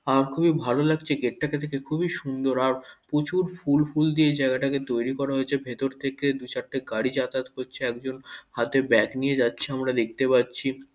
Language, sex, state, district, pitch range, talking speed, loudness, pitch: Bengali, male, West Bengal, North 24 Parganas, 130-145 Hz, 190 wpm, -25 LUFS, 135 Hz